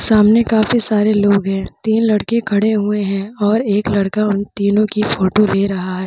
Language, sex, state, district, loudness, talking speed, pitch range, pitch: Hindi, female, Bihar, Vaishali, -15 LUFS, 195 wpm, 200-215 Hz, 210 Hz